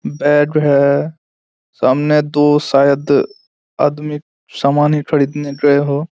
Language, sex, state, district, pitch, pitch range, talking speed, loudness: Hindi, male, Bihar, Araria, 145 Hz, 140-150 Hz, 100 wpm, -14 LUFS